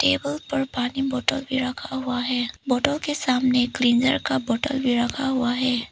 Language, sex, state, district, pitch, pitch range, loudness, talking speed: Hindi, female, Arunachal Pradesh, Papum Pare, 255 Hz, 245-275 Hz, -23 LUFS, 185 wpm